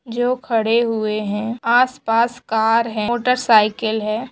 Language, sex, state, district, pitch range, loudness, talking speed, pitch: Hindi, female, Andhra Pradesh, Chittoor, 220-240 Hz, -18 LUFS, 155 wpm, 230 Hz